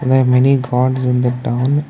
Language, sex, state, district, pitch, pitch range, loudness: English, male, Karnataka, Bangalore, 130 Hz, 125-135 Hz, -15 LUFS